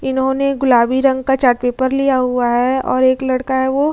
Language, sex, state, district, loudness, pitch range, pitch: Hindi, female, Bihar, Vaishali, -15 LUFS, 250-270 Hz, 260 Hz